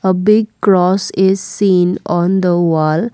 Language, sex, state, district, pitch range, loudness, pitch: English, female, Assam, Kamrup Metropolitan, 175-195 Hz, -13 LUFS, 190 Hz